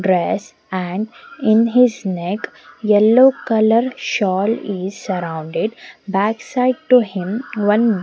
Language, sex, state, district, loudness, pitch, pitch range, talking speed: English, female, Punjab, Pathankot, -17 LUFS, 215 Hz, 190-235 Hz, 110 wpm